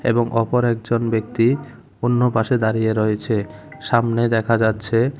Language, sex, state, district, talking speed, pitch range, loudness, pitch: Bengali, male, Tripura, West Tripura, 125 wpm, 110-120 Hz, -19 LUFS, 115 Hz